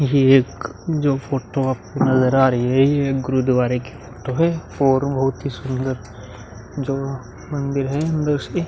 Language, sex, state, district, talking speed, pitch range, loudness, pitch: Hindi, male, Uttar Pradesh, Muzaffarnagar, 160 wpm, 125-140 Hz, -20 LUFS, 135 Hz